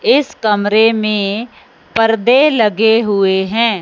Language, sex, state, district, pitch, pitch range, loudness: Hindi, male, Punjab, Fazilka, 220 Hz, 210-230 Hz, -13 LUFS